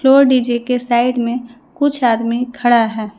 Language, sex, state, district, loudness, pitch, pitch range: Hindi, female, Jharkhand, Deoghar, -15 LUFS, 245 Hz, 235-255 Hz